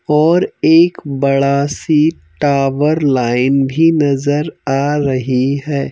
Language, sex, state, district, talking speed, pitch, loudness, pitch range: Hindi, male, Madhya Pradesh, Bhopal, 110 wpm, 140 Hz, -14 LUFS, 135-150 Hz